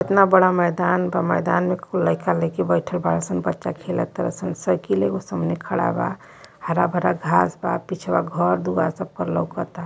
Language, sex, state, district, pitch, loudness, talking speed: Hindi, female, Uttar Pradesh, Varanasi, 175 Hz, -22 LUFS, 175 wpm